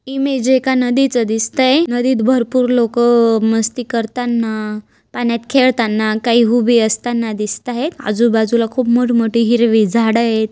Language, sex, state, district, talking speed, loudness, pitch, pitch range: Marathi, female, Maharashtra, Dhule, 130 wpm, -15 LUFS, 235 Hz, 225-250 Hz